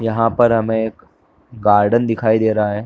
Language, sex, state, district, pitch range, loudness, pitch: Hindi, male, Chhattisgarh, Bilaspur, 110-115 Hz, -16 LUFS, 110 Hz